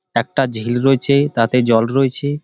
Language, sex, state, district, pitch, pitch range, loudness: Bengali, male, West Bengal, Malda, 130 Hz, 120-140 Hz, -16 LUFS